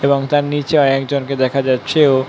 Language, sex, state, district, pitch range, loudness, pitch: Bengali, male, West Bengal, North 24 Parganas, 135-145 Hz, -15 LUFS, 135 Hz